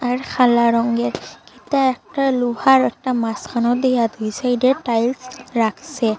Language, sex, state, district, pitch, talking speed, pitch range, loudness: Bengali, female, Assam, Hailakandi, 245 Hz, 135 wpm, 235-260 Hz, -18 LUFS